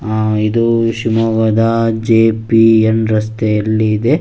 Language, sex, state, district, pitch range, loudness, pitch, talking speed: Kannada, male, Karnataka, Shimoga, 110-115 Hz, -13 LUFS, 110 Hz, 100 wpm